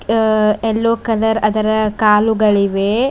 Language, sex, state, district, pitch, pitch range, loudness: Kannada, female, Karnataka, Bidar, 215 Hz, 210-225 Hz, -15 LUFS